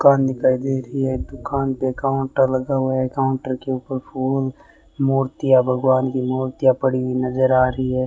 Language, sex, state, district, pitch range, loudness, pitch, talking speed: Hindi, male, Rajasthan, Bikaner, 130-135 Hz, -20 LUFS, 130 Hz, 185 wpm